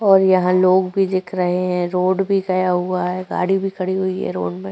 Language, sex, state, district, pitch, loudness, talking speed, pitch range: Hindi, female, Uttar Pradesh, Jyotiba Phule Nagar, 185 Hz, -18 LUFS, 240 wpm, 180-190 Hz